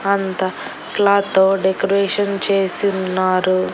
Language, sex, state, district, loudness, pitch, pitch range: Telugu, female, Andhra Pradesh, Annamaya, -17 LUFS, 195 Hz, 185-200 Hz